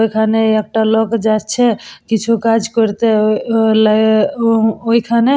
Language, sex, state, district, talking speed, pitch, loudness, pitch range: Bengali, female, West Bengal, Purulia, 145 wpm, 225 Hz, -14 LUFS, 220-230 Hz